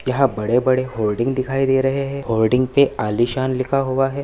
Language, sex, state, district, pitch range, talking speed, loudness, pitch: Hindi, male, Maharashtra, Nagpur, 120-135 Hz, 200 wpm, -19 LUFS, 130 Hz